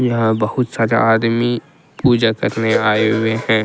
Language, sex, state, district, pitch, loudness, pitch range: Hindi, male, Jharkhand, Deoghar, 115 Hz, -16 LUFS, 110-120 Hz